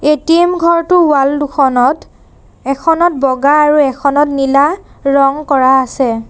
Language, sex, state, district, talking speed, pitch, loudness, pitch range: Assamese, female, Assam, Sonitpur, 115 wpm, 280 Hz, -11 LUFS, 270-305 Hz